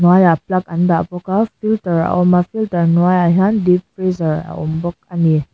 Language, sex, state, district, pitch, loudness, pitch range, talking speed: Mizo, female, Mizoram, Aizawl, 180 Hz, -16 LUFS, 170-185 Hz, 215 wpm